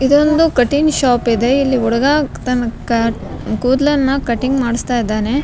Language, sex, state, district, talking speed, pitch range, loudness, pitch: Kannada, female, Karnataka, Raichur, 130 wpm, 235-280 Hz, -15 LUFS, 255 Hz